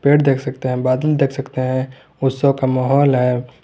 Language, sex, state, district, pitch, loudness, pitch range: Hindi, male, Jharkhand, Garhwa, 130 Hz, -17 LUFS, 130-140 Hz